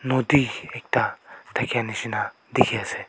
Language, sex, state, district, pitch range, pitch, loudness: Nagamese, male, Nagaland, Kohima, 115-130 Hz, 125 Hz, -24 LUFS